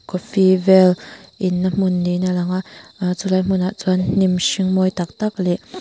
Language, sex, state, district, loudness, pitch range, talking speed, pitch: Mizo, female, Mizoram, Aizawl, -18 LUFS, 180-190 Hz, 185 wpm, 185 Hz